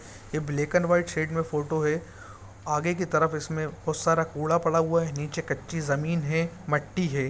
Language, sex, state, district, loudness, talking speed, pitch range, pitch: Hindi, male, Bihar, Saran, -27 LUFS, 195 wpm, 145-165 Hz, 155 Hz